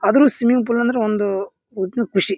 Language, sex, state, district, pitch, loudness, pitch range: Kannada, male, Karnataka, Bijapur, 220 Hz, -19 LUFS, 195-240 Hz